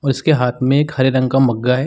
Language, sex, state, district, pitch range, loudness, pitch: Hindi, male, Uttar Pradesh, Muzaffarnagar, 125-135 Hz, -15 LUFS, 130 Hz